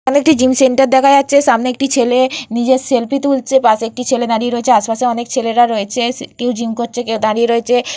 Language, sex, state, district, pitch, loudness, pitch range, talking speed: Bengali, female, West Bengal, Purulia, 245 Hz, -14 LUFS, 235-265 Hz, 210 wpm